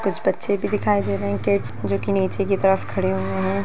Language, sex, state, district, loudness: Hindi, female, Bihar, Lakhisarai, -20 LUFS